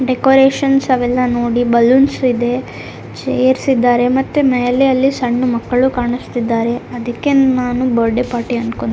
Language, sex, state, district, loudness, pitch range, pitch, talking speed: Kannada, female, Karnataka, Raichur, -14 LUFS, 240-265 Hz, 250 Hz, 130 wpm